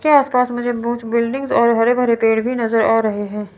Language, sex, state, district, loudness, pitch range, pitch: Hindi, female, Chandigarh, Chandigarh, -17 LUFS, 225-250 Hz, 235 Hz